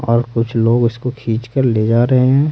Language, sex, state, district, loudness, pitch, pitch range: Hindi, male, Bihar, Patna, -15 LUFS, 120 Hz, 115-130 Hz